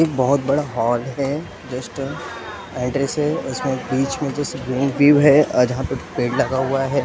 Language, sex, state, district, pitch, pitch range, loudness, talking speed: Hindi, male, Maharashtra, Mumbai Suburban, 135 Hz, 130-145 Hz, -20 LUFS, 205 wpm